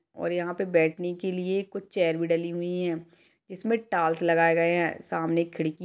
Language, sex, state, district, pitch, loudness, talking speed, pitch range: Hindi, female, Chhattisgarh, Sarguja, 175 Hz, -27 LUFS, 205 wpm, 165-185 Hz